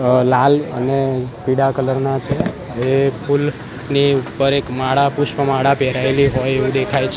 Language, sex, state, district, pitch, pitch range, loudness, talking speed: Gujarati, male, Gujarat, Gandhinagar, 135 Hz, 130-140 Hz, -17 LUFS, 165 wpm